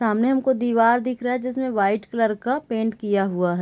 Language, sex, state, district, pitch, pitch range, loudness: Hindi, female, Bihar, Sitamarhi, 230 Hz, 210-250 Hz, -22 LUFS